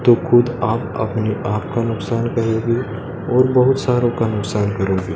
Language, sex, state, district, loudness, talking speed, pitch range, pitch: Hindi, male, Madhya Pradesh, Dhar, -18 LUFS, 165 wpm, 110-120 Hz, 115 Hz